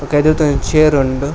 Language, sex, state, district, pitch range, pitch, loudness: Tulu, male, Karnataka, Dakshina Kannada, 140-155 Hz, 145 Hz, -13 LUFS